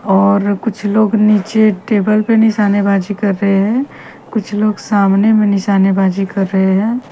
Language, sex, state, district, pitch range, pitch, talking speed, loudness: Hindi, female, Haryana, Charkhi Dadri, 195-215 Hz, 205 Hz, 145 wpm, -13 LUFS